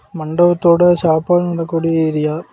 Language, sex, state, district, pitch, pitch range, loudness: Tamil, male, Tamil Nadu, Kanyakumari, 165 Hz, 160-175 Hz, -15 LUFS